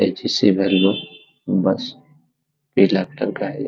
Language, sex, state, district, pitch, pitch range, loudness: Hindi, male, Bihar, Araria, 100 Hz, 95-145 Hz, -19 LUFS